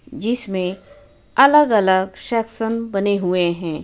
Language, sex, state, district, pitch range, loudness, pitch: Hindi, female, Jharkhand, Ranchi, 185-230 Hz, -18 LUFS, 205 Hz